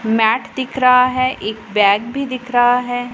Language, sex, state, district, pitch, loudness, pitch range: Hindi, female, Punjab, Pathankot, 245 Hz, -16 LUFS, 225-255 Hz